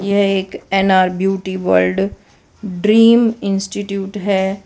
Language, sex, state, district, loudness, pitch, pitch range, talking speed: Hindi, female, Gujarat, Valsad, -16 LUFS, 195 Hz, 190-200 Hz, 115 wpm